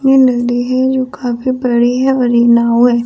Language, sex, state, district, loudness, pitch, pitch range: Hindi, female, Bihar, Sitamarhi, -12 LUFS, 245 Hz, 240-260 Hz